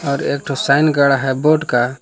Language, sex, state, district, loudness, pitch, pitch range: Hindi, male, Jharkhand, Palamu, -15 LUFS, 140 Hz, 135-150 Hz